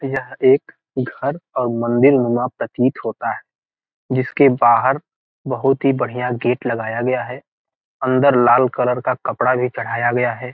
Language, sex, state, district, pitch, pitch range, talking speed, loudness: Hindi, male, Bihar, Gopalganj, 125 Hz, 125-135 Hz, 170 wpm, -18 LUFS